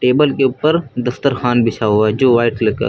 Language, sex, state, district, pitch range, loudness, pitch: Hindi, male, Uttar Pradesh, Lucknow, 115-135 Hz, -15 LUFS, 125 Hz